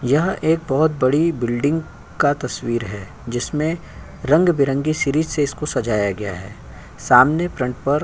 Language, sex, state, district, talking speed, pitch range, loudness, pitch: Hindi, male, Uttar Pradesh, Jyotiba Phule Nagar, 155 wpm, 120-155 Hz, -19 LUFS, 140 Hz